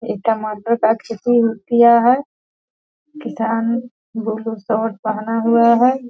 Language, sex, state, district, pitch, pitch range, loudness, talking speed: Hindi, female, Bihar, Purnia, 230 Hz, 225-240 Hz, -17 LUFS, 130 wpm